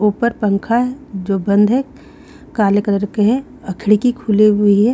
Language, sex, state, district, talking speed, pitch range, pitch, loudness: Hindi, female, Haryana, Rohtak, 170 wpm, 200-245 Hz, 210 Hz, -15 LUFS